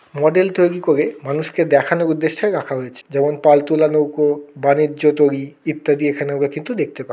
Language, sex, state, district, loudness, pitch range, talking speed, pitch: Bengali, male, West Bengal, Kolkata, -17 LUFS, 145-155 Hz, 160 wpm, 150 Hz